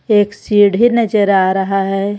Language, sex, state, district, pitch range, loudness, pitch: Hindi, female, Jharkhand, Ranchi, 195-210 Hz, -13 LUFS, 205 Hz